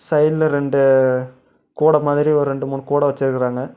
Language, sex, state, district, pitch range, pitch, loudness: Tamil, male, Tamil Nadu, Namakkal, 130-150 Hz, 140 Hz, -17 LUFS